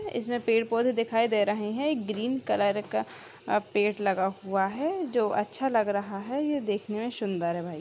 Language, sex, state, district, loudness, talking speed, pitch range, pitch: Hindi, male, Bihar, Bhagalpur, -28 LUFS, 200 wpm, 200-245 Hz, 215 Hz